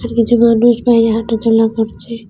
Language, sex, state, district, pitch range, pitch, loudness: Bengali, female, Tripura, West Tripura, 225-235 Hz, 230 Hz, -13 LUFS